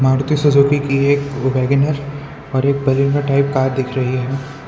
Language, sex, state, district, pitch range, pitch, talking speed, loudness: Hindi, male, Gujarat, Valsad, 130-140 Hz, 140 Hz, 155 wpm, -16 LUFS